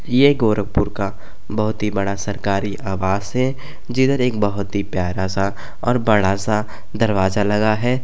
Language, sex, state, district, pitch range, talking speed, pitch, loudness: Bhojpuri, male, Uttar Pradesh, Gorakhpur, 100-115 Hz, 155 wpm, 105 Hz, -20 LUFS